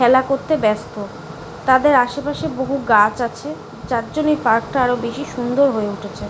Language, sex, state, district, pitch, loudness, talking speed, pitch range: Bengali, female, West Bengal, Kolkata, 245 Hz, -18 LUFS, 180 wpm, 210-275 Hz